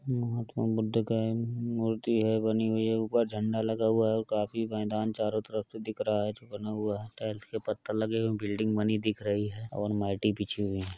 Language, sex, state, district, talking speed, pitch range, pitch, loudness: Hindi, male, Uttar Pradesh, Etah, 225 wpm, 105-110 Hz, 110 Hz, -31 LUFS